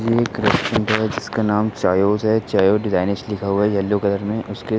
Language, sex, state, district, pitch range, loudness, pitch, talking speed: Hindi, male, Uttar Pradesh, Muzaffarnagar, 100-110 Hz, -19 LUFS, 105 Hz, 225 wpm